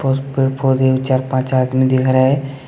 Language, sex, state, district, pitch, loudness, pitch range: Hindi, male, Jharkhand, Deoghar, 130 Hz, -16 LUFS, 130-135 Hz